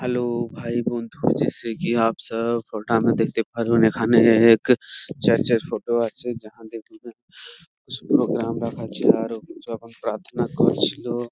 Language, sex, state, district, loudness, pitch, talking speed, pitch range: Bengali, male, West Bengal, Purulia, -21 LUFS, 115 Hz, 90 wpm, 115-120 Hz